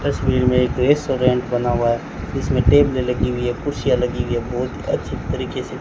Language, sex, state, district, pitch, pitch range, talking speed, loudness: Hindi, male, Rajasthan, Bikaner, 125 Hz, 120-130 Hz, 205 wpm, -19 LUFS